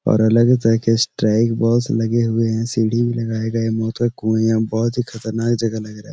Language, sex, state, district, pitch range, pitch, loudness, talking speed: Hindi, male, Uttar Pradesh, Etah, 110-115 Hz, 115 Hz, -18 LUFS, 235 wpm